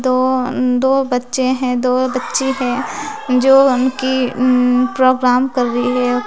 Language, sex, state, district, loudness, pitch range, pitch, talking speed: Hindi, female, Bihar, West Champaran, -15 LUFS, 250-260 Hz, 255 Hz, 145 wpm